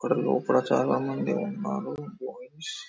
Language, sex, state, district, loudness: Telugu, male, Telangana, Karimnagar, -28 LUFS